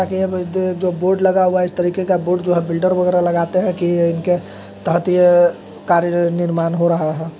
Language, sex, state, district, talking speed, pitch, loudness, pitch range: Hindi, male, Jharkhand, Sahebganj, 205 wpm, 175 Hz, -17 LUFS, 170-185 Hz